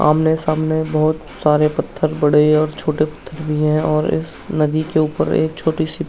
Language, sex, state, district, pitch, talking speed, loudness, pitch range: Hindi, male, Uttarakhand, Tehri Garhwal, 155 Hz, 195 wpm, -17 LUFS, 150-160 Hz